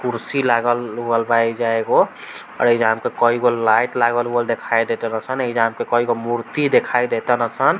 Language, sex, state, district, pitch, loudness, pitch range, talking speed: Bhojpuri, male, Bihar, East Champaran, 120 Hz, -18 LUFS, 115-120 Hz, 170 wpm